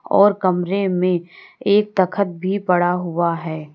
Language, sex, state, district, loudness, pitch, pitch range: Hindi, female, Uttar Pradesh, Lalitpur, -19 LUFS, 180 Hz, 175-195 Hz